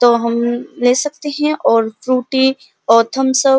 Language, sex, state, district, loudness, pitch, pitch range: Hindi, female, Uttar Pradesh, Muzaffarnagar, -15 LUFS, 260 Hz, 240-275 Hz